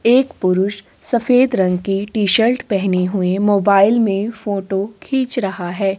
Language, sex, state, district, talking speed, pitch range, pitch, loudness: Hindi, female, Chhattisgarh, Korba, 140 wpm, 195-230 Hz, 200 Hz, -16 LUFS